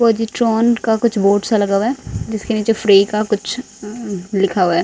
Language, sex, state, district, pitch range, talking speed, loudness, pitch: Hindi, female, Haryana, Rohtak, 200-230 Hz, 200 wpm, -16 LUFS, 215 Hz